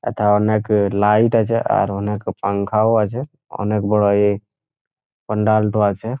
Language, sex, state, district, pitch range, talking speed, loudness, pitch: Bengali, male, West Bengal, Jhargram, 100-110 Hz, 155 wpm, -18 LUFS, 105 Hz